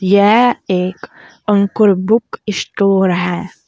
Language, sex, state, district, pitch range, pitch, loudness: Hindi, female, Uttar Pradesh, Saharanpur, 185-215 Hz, 200 Hz, -14 LUFS